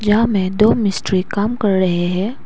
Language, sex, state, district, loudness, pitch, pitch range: Hindi, female, Arunachal Pradesh, Lower Dibang Valley, -17 LUFS, 205 Hz, 185-215 Hz